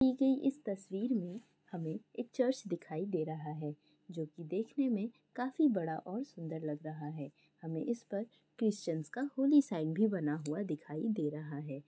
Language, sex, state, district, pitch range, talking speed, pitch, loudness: Hindi, female, Bihar, Madhepura, 155-240 Hz, 185 wpm, 185 Hz, -37 LUFS